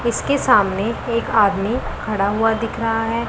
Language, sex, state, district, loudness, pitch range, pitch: Hindi, female, Punjab, Pathankot, -19 LUFS, 210-235 Hz, 225 Hz